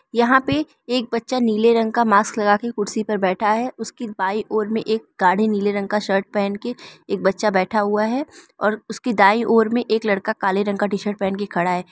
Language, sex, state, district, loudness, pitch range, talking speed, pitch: Hindi, female, Arunachal Pradesh, Lower Dibang Valley, -20 LUFS, 200-230 Hz, 235 wpm, 215 Hz